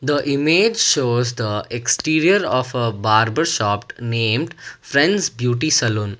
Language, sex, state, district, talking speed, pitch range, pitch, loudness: English, male, Karnataka, Bangalore, 125 wpm, 115-155 Hz, 120 Hz, -18 LUFS